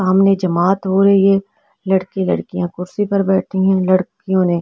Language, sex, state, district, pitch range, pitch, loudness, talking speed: Hindi, female, Delhi, New Delhi, 185-195 Hz, 190 Hz, -16 LUFS, 170 wpm